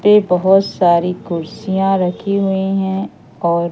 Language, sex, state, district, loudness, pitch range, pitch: Hindi, female, Madhya Pradesh, Umaria, -16 LUFS, 175-195 Hz, 190 Hz